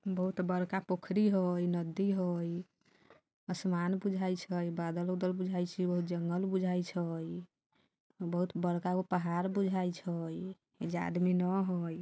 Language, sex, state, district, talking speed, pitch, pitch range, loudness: Bajjika, female, Bihar, Vaishali, 120 wpm, 180 Hz, 175-185 Hz, -35 LUFS